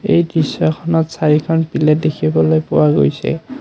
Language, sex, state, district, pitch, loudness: Assamese, male, Assam, Kamrup Metropolitan, 155 Hz, -15 LUFS